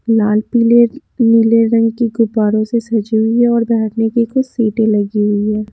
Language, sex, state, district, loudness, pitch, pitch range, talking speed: Hindi, female, Haryana, Jhajjar, -14 LUFS, 225 Hz, 215-235 Hz, 190 wpm